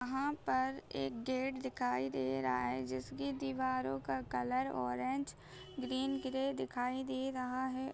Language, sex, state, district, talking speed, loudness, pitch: Hindi, female, Bihar, Bhagalpur, 145 wpm, -38 LUFS, 245 Hz